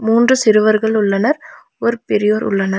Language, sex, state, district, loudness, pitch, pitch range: Tamil, female, Tamil Nadu, Nilgiris, -15 LUFS, 220 Hz, 210-235 Hz